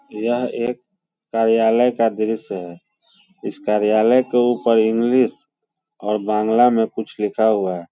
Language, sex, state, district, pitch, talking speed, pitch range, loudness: Hindi, male, Bihar, Muzaffarpur, 115 Hz, 135 wpm, 110-125 Hz, -18 LUFS